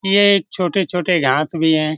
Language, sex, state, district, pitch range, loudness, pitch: Hindi, male, Bihar, Lakhisarai, 155-195 Hz, -16 LUFS, 180 Hz